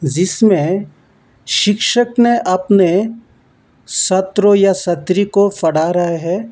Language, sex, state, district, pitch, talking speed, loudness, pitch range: Hindi, male, Karnataka, Bangalore, 195 Hz, 100 wpm, -14 LUFS, 180-205 Hz